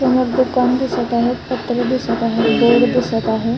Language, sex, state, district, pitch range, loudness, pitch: Marathi, female, Maharashtra, Sindhudurg, 230-255 Hz, -16 LUFS, 245 Hz